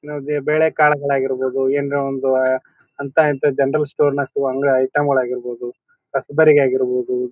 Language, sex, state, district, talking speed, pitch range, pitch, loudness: Kannada, male, Karnataka, Bijapur, 140 wpm, 130-150 Hz, 140 Hz, -18 LUFS